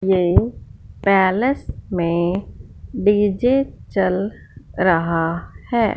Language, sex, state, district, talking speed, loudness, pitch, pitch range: Hindi, female, Punjab, Fazilka, 70 wpm, -19 LUFS, 190 Hz, 170-205 Hz